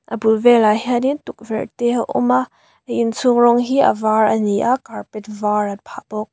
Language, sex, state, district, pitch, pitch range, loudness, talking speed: Mizo, female, Mizoram, Aizawl, 230 Hz, 215-245 Hz, -17 LUFS, 200 wpm